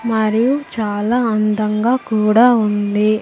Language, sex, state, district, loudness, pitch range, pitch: Telugu, female, Andhra Pradesh, Sri Satya Sai, -16 LUFS, 215-235 Hz, 215 Hz